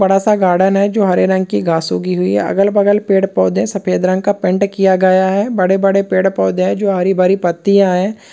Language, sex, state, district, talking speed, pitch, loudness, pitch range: Hindi, male, West Bengal, Purulia, 235 wpm, 190 Hz, -13 LUFS, 180-200 Hz